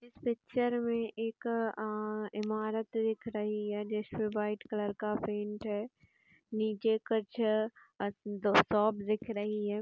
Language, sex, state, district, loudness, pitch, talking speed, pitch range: Hindi, female, Uttar Pradesh, Etah, -34 LUFS, 215 Hz, 135 wpm, 210-225 Hz